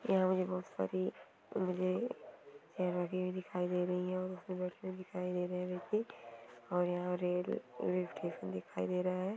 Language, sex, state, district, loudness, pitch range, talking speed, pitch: Hindi, female, Bihar, Saran, -38 LUFS, 180-185 Hz, 135 wpm, 180 Hz